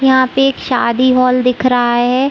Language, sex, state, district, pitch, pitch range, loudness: Hindi, female, Chhattisgarh, Raigarh, 255 Hz, 250-260 Hz, -13 LUFS